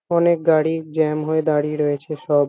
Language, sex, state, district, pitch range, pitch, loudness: Bengali, male, West Bengal, Kolkata, 150-160 Hz, 155 Hz, -20 LUFS